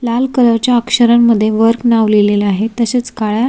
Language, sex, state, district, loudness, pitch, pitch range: Marathi, female, Maharashtra, Solapur, -12 LUFS, 235 Hz, 220-240 Hz